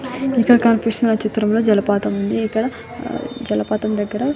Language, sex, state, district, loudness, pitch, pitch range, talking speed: Telugu, female, Telangana, Nalgonda, -18 LUFS, 220 Hz, 210-235 Hz, 125 wpm